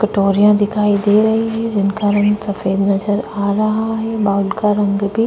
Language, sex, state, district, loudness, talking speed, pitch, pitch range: Hindi, female, Maharashtra, Chandrapur, -16 LUFS, 195 wpm, 205 Hz, 200-215 Hz